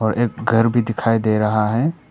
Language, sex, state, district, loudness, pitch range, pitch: Hindi, male, Arunachal Pradesh, Papum Pare, -18 LUFS, 110-120 Hz, 115 Hz